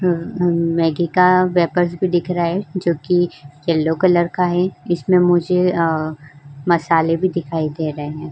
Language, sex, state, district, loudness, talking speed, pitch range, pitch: Hindi, female, Uttar Pradesh, Jyotiba Phule Nagar, -18 LUFS, 160 wpm, 160-180 Hz, 170 Hz